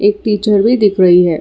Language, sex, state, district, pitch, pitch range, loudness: Hindi, female, Karnataka, Bangalore, 205 Hz, 185-210 Hz, -11 LUFS